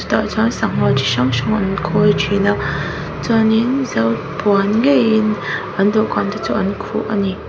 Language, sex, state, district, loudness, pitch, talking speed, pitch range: Mizo, female, Mizoram, Aizawl, -17 LUFS, 200 Hz, 170 wpm, 190-220 Hz